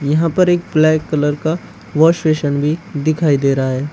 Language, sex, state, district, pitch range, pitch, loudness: Hindi, male, Uttar Pradesh, Shamli, 145-160 Hz, 155 Hz, -16 LUFS